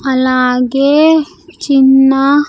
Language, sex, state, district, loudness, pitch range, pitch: Telugu, female, Andhra Pradesh, Sri Satya Sai, -10 LUFS, 265-300 Hz, 275 Hz